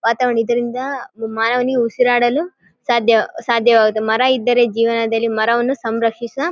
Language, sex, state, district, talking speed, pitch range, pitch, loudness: Kannada, female, Karnataka, Bellary, 110 wpm, 230-250 Hz, 235 Hz, -16 LUFS